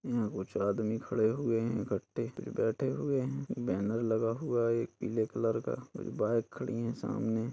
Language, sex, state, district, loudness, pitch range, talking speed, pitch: Hindi, male, Uttar Pradesh, Budaun, -34 LUFS, 110-115 Hz, 175 wpm, 115 Hz